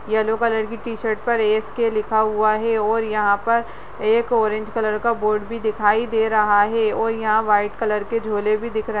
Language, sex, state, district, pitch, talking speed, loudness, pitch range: Hindi, female, Uttarakhand, Tehri Garhwal, 220 Hz, 220 wpm, -20 LUFS, 215-225 Hz